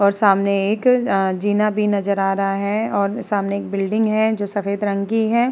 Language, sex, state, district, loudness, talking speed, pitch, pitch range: Hindi, female, Uttar Pradesh, Muzaffarnagar, -19 LUFS, 215 wpm, 205 Hz, 200-215 Hz